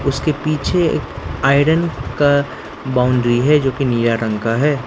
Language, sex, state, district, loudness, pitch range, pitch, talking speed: Hindi, male, Arunachal Pradesh, Lower Dibang Valley, -16 LUFS, 120-145 Hz, 135 Hz, 160 wpm